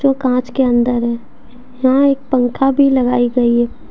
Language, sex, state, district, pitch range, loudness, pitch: Hindi, female, Jharkhand, Deoghar, 245-270 Hz, -14 LUFS, 250 Hz